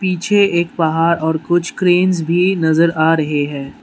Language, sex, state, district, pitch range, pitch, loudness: Hindi, male, Manipur, Imphal West, 160-180 Hz, 170 Hz, -15 LUFS